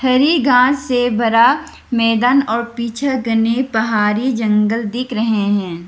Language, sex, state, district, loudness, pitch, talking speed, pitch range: Hindi, female, Arunachal Pradesh, Lower Dibang Valley, -15 LUFS, 230 Hz, 135 wpm, 220-255 Hz